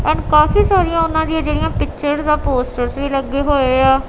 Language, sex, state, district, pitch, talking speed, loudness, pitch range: Punjabi, female, Punjab, Kapurthala, 290 Hz, 190 wpm, -16 LUFS, 270-315 Hz